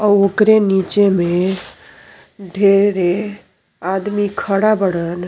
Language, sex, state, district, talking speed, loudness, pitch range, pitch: Bhojpuri, female, Uttar Pradesh, Deoria, 90 wpm, -15 LUFS, 185-205 Hz, 195 Hz